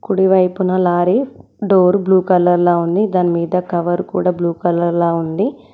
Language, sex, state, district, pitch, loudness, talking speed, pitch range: Telugu, female, Telangana, Mahabubabad, 180 Hz, -15 LUFS, 135 wpm, 175-190 Hz